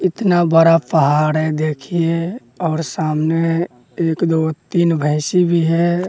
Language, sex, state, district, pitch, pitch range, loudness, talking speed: Hindi, male, Bihar, West Champaran, 165 Hz, 155-170 Hz, -17 LUFS, 130 wpm